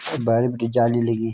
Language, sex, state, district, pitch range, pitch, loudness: Garhwali, male, Uttarakhand, Tehri Garhwal, 115-120 Hz, 115 Hz, -21 LUFS